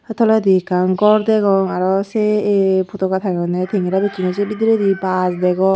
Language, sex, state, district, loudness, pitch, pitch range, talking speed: Chakma, female, Tripura, Unakoti, -16 LUFS, 195 Hz, 185-210 Hz, 165 wpm